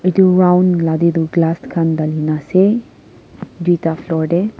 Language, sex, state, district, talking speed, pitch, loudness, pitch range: Nagamese, female, Nagaland, Kohima, 155 wpm, 170 Hz, -15 LUFS, 160-185 Hz